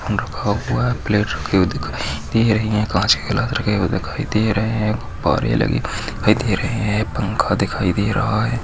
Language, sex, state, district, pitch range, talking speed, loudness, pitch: Hindi, male, Maharashtra, Aurangabad, 95-110 Hz, 215 wpm, -19 LUFS, 105 Hz